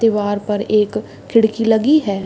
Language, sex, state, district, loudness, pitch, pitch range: Hindi, female, Bihar, Saharsa, -16 LUFS, 215 Hz, 205-225 Hz